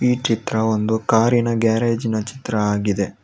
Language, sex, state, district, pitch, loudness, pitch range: Kannada, male, Karnataka, Bangalore, 110 Hz, -19 LUFS, 105-115 Hz